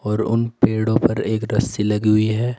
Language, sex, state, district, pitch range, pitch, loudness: Hindi, male, Uttar Pradesh, Saharanpur, 105-115 Hz, 110 Hz, -19 LUFS